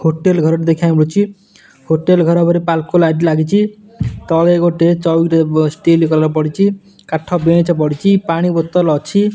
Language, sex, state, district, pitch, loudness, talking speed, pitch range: Odia, male, Odisha, Nuapada, 165 Hz, -14 LUFS, 140 wpm, 160-185 Hz